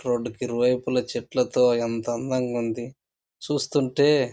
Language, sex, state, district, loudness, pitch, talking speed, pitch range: Telugu, male, Andhra Pradesh, Chittoor, -24 LUFS, 125 Hz, 125 wpm, 120-140 Hz